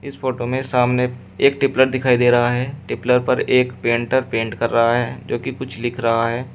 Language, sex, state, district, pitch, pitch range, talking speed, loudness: Hindi, male, Uttar Pradesh, Shamli, 125 Hz, 120-130 Hz, 210 wpm, -19 LUFS